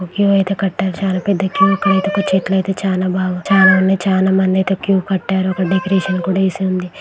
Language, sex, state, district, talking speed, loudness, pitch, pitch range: Telugu, female, Telangana, Karimnagar, 205 wpm, -15 LUFS, 190 Hz, 185-195 Hz